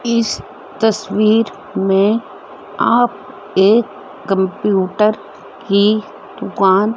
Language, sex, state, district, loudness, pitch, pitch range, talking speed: Hindi, female, Haryana, Rohtak, -15 LUFS, 210 Hz, 195-220 Hz, 70 wpm